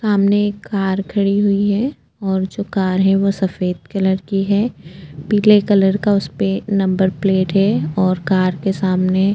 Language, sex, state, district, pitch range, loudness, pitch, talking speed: Hindi, female, Goa, North and South Goa, 190-205 Hz, -17 LUFS, 195 Hz, 175 wpm